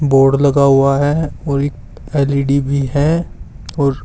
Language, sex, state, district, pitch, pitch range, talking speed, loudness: Hindi, male, Uttar Pradesh, Saharanpur, 140 Hz, 135-145 Hz, 150 wpm, -15 LUFS